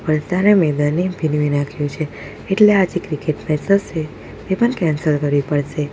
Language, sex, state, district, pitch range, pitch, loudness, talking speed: Gujarati, female, Gujarat, Valsad, 145-185 Hz, 155 Hz, -18 LUFS, 150 wpm